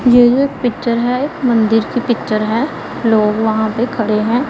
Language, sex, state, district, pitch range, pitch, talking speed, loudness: Hindi, female, Punjab, Pathankot, 220-245 Hz, 235 Hz, 175 wpm, -15 LUFS